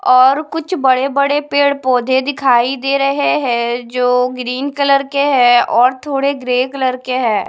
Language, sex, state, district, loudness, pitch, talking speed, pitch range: Hindi, female, Punjab, Pathankot, -14 LUFS, 260 Hz, 150 wpm, 250-280 Hz